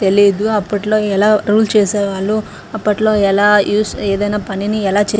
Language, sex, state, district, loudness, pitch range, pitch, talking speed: Telugu, female, Andhra Pradesh, Srikakulam, -14 LUFS, 200-215 Hz, 210 Hz, 150 wpm